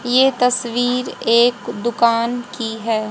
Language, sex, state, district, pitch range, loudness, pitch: Hindi, female, Haryana, Jhajjar, 230-245 Hz, -18 LUFS, 240 Hz